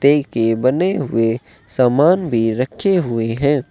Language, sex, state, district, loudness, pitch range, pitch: Hindi, male, Uttar Pradesh, Saharanpur, -17 LUFS, 115-150 Hz, 130 Hz